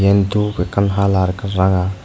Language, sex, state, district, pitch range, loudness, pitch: Chakma, male, Tripura, Dhalai, 95-100 Hz, -17 LUFS, 100 Hz